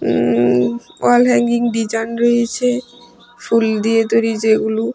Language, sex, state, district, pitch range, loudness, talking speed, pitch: Bengali, female, Tripura, West Tripura, 220-240 Hz, -16 LUFS, 110 wpm, 230 Hz